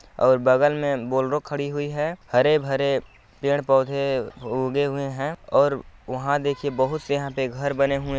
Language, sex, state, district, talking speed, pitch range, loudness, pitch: Hindi, male, Chhattisgarh, Balrampur, 175 wpm, 130-145 Hz, -23 LUFS, 140 Hz